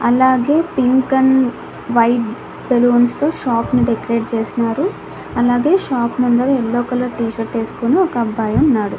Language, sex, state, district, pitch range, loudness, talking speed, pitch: Telugu, female, Andhra Pradesh, Annamaya, 235-260 Hz, -16 LUFS, 135 wpm, 245 Hz